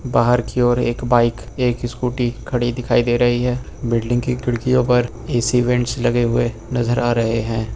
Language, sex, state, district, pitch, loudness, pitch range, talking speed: Hindi, male, Uttar Pradesh, Lucknow, 120 Hz, -19 LUFS, 120-125 Hz, 185 wpm